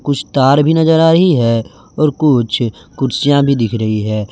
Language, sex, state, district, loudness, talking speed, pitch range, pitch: Hindi, male, Jharkhand, Garhwa, -13 LUFS, 180 wpm, 115-150 Hz, 135 Hz